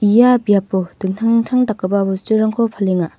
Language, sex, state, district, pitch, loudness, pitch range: Garo, female, Meghalaya, North Garo Hills, 205 Hz, -16 LUFS, 190-230 Hz